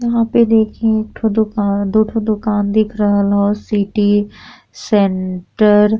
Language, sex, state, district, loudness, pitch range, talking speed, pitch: Bhojpuri, female, Uttar Pradesh, Deoria, -15 LUFS, 205-220 Hz, 140 wpm, 210 Hz